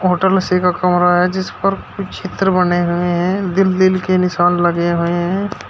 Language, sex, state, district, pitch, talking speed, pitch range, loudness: Hindi, male, Uttar Pradesh, Shamli, 180 Hz, 200 wpm, 175-190 Hz, -15 LUFS